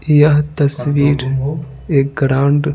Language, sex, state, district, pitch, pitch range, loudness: Hindi, male, Bihar, Patna, 145 Hz, 140-150 Hz, -15 LUFS